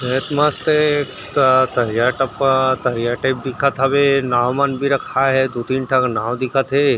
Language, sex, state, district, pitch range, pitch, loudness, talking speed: Chhattisgarhi, male, Chhattisgarh, Rajnandgaon, 125-140 Hz, 130 Hz, -17 LUFS, 200 wpm